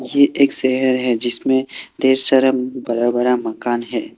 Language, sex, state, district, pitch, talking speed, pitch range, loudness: Hindi, male, Assam, Kamrup Metropolitan, 130 Hz, 160 wpm, 120-130 Hz, -17 LUFS